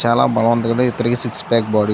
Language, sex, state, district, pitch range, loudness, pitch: Telugu, male, Andhra Pradesh, Chittoor, 115-120 Hz, -16 LUFS, 115 Hz